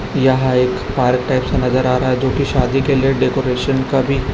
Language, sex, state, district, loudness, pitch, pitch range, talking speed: Hindi, male, Chhattisgarh, Raipur, -16 LUFS, 130 Hz, 125-135 Hz, 205 wpm